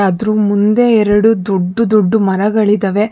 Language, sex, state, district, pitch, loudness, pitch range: Kannada, female, Karnataka, Bangalore, 210 Hz, -12 LUFS, 200-220 Hz